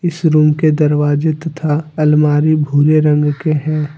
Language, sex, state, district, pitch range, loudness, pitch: Hindi, male, Jharkhand, Deoghar, 150-155 Hz, -13 LUFS, 150 Hz